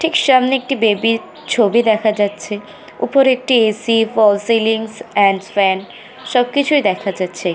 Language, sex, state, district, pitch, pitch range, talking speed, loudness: Bengali, female, West Bengal, North 24 Parganas, 225 Hz, 205-255 Hz, 150 wpm, -15 LUFS